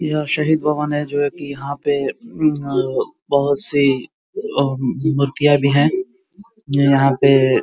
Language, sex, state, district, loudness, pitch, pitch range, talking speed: Hindi, male, Uttar Pradesh, Ghazipur, -18 LUFS, 145 Hz, 140-155 Hz, 150 wpm